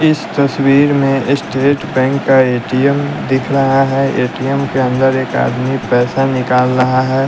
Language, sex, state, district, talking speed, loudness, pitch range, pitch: Hindi, male, Bihar, West Champaran, 155 wpm, -13 LUFS, 130-140 Hz, 135 Hz